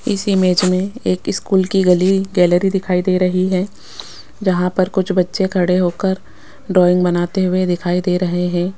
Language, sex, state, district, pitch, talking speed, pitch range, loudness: Hindi, female, Rajasthan, Jaipur, 185 Hz, 170 wpm, 180-190 Hz, -16 LUFS